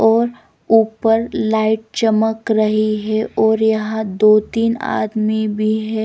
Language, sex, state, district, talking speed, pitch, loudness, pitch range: Hindi, female, Bihar, West Champaran, 120 wpm, 220 Hz, -17 LUFS, 215-225 Hz